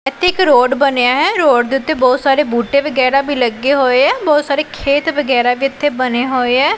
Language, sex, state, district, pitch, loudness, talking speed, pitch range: Punjabi, female, Punjab, Pathankot, 275 Hz, -13 LUFS, 220 wpm, 255-290 Hz